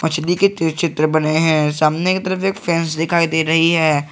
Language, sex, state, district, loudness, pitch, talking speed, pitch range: Hindi, male, Jharkhand, Garhwa, -16 LUFS, 160 Hz, 190 wpm, 155-170 Hz